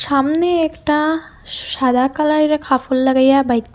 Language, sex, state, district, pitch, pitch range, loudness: Bengali, female, Assam, Hailakandi, 285 Hz, 265-305 Hz, -16 LUFS